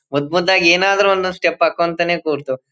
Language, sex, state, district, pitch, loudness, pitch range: Kannada, male, Karnataka, Bellary, 170 Hz, -15 LUFS, 155-185 Hz